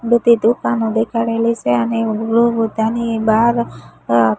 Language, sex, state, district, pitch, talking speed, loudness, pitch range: Gujarati, female, Gujarat, Gandhinagar, 230 Hz, 110 wpm, -16 LUFS, 220-235 Hz